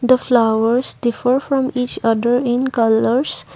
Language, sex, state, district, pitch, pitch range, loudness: English, female, Assam, Kamrup Metropolitan, 245 Hz, 230-255 Hz, -16 LUFS